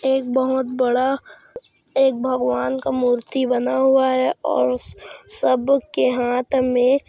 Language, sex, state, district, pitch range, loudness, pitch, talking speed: Hindi, male, Chhattisgarh, Kabirdham, 245-265 Hz, -20 LUFS, 255 Hz, 120 wpm